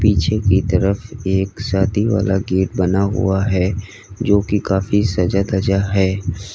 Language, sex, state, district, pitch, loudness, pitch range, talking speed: Hindi, male, Uttar Pradesh, Lalitpur, 95 Hz, -18 LUFS, 95-105 Hz, 145 wpm